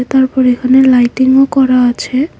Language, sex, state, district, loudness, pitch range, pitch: Bengali, female, Tripura, West Tripura, -10 LUFS, 250-265 Hz, 260 Hz